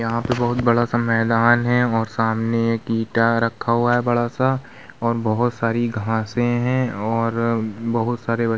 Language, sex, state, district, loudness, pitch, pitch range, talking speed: Hindi, male, Uttar Pradesh, Muzaffarnagar, -20 LUFS, 115 Hz, 115-120 Hz, 180 wpm